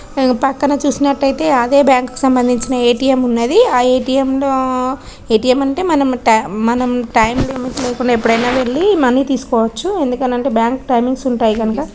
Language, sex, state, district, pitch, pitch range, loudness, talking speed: Telugu, female, Andhra Pradesh, Krishna, 255 Hz, 245-275 Hz, -14 LUFS, 130 wpm